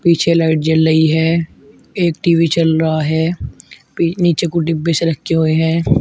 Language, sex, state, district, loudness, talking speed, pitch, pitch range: Hindi, male, Uttar Pradesh, Shamli, -15 LUFS, 170 wpm, 165 Hz, 160-170 Hz